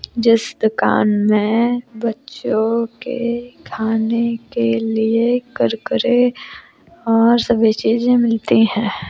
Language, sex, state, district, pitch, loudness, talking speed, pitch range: Hindi, female, Uttar Pradesh, Jalaun, 230 Hz, -17 LUFS, 90 wpm, 220-240 Hz